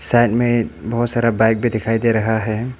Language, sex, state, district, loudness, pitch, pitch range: Hindi, male, Arunachal Pradesh, Papum Pare, -17 LUFS, 115 Hz, 110-120 Hz